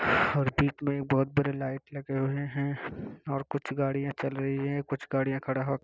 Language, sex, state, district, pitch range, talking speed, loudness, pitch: Hindi, male, Bihar, Kishanganj, 135-140 Hz, 205 wpm, -30 LUFS, 140 Hz